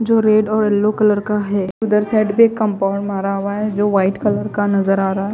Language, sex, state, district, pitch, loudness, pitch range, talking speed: Hindi, female, Chandigarh, Chandigarh, 205 Hz, -17 LUFS, 195-215 Hz, 245 wpm